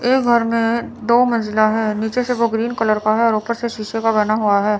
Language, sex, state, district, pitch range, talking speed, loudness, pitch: Hindi, female, Chandigarh, Chandigarh, 215-235 Hz, 260 wpm, -17 LUFS, 225 Hz